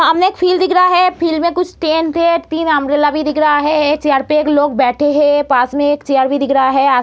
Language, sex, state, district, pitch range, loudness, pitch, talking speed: Hindi, female, Bihar, Muzaffarpur, 290-335 Hz, -13 LUFS, 300 Hz, 280 wpm